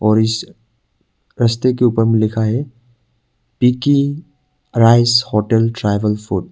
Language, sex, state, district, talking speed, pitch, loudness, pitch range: Hindi, male, Arunachal Pradesh, Papum Pare, 120 wpm, 115 Hz, -15 LUFS, 110-125 Hz